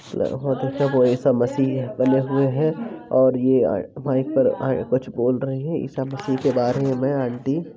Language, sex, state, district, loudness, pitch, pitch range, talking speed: Hindi, male, Uttar Pradesh, Jalaun, -21 LUFS, 135 Hz, 130-140 Hz, 145 wpm